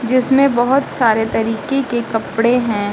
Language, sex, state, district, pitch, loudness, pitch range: Hindi, female, Uttar Pradesh, Lucknow, 240 Hz, -16 LUFS, 225-265 Hz